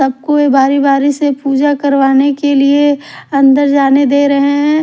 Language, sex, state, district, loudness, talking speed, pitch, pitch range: Hindi, female, Haryana, Rohtak, -11 LUFS, 150 wpm, 280 Hz, 275-285 Hz